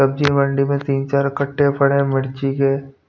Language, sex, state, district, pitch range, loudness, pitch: Hindi, male, Punjab, Pathankot, 135-140 Hz, -18 LUFS, 140 Hz